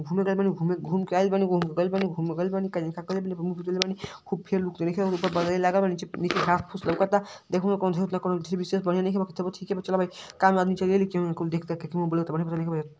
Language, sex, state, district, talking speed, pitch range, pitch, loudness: Bhojpuri, male, Uttar Pradesh, Ghazipur, 250 wpm, 175-190 Hz, 185 Hz, -27 LUFS